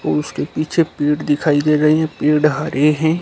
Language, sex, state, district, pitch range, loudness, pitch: Hindi, male, Haryana, Charkhi Dadri, 150-155 Hz, -16 LUFS, 150 Hz